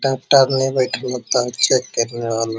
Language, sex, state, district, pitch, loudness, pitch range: Hindi, male, Bihar, Jahanabad, 125 Hz, -18 LUFS, 120-135 Hz